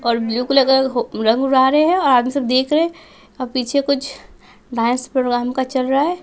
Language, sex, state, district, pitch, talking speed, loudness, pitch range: Hindi, male, Bihar, West Champaran, 260 Hz, 210 wpm, -17 LUFS, 245-280 Hz